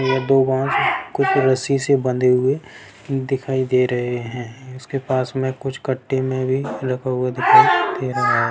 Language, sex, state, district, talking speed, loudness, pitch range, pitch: Hindi, male, Bihar, Darbhanga, 160 wpm, -19 LUFS, 130-135 Hz, 130 Hz